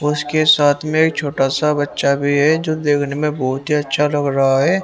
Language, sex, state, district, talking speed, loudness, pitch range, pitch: Hindi, male, Haryana, Rohtak, 225 wpm, -16 LUFS, 140-155 Hz, 150 Hz